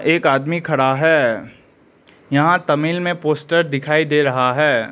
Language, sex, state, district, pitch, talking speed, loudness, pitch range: Hindi, male, Arunachal Pradesh, Lower Dibang Valley, 150 Hz, 145 wpm, -17 LUFS, 140-165 Hz